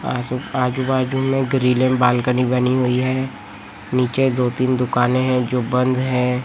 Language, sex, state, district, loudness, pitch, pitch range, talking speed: Hindi, male, Chhattisgarh, Raipur, -19 LUFS, 125 Hz, 125-130 Hz, 150 wpm